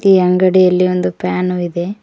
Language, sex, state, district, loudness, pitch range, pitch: Kannada, female, Karnataka, Koppal, -14 LUFS, 175-185 Hz, 180 Hz